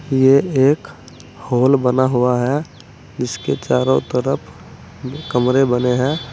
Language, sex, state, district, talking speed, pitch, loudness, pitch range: Hindi, male, Uttar Pradesh, Saharanpur, 115 wpm, 130 Hz, -17 LUFS, 125-135 Hz